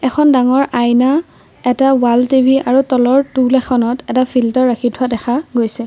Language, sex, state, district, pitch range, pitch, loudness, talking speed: Assamese, female, Assam, Kamrup Metropolitan, 245-265 Hz, 255 Hz, -13 LUFS, 165 wpm